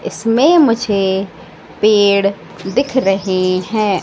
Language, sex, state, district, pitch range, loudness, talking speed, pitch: Hindi, female, Madhya Pradesh, Katni, 190-230 Hz, -14 LUFS, 90 wpm, 200 Hz